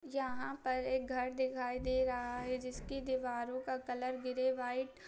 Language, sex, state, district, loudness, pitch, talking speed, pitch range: Hindi, female, Chhattisgarh, Raigarh, -38 LUFS, 255 Hz, 175 wpm, 250-260 Hz